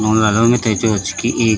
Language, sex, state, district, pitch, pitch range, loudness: Garhwali, male, Uttarakhand, Tehri Garhwal, 110 Hz, 110-115 Hz, -15 LUFS